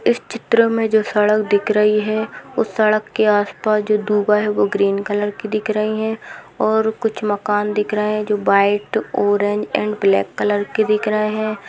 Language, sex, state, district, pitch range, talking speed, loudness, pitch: Hindi, female, Bihar, East Champaran, 205-215 Hz, 195 wpm, -18 LUFS, 210 Hz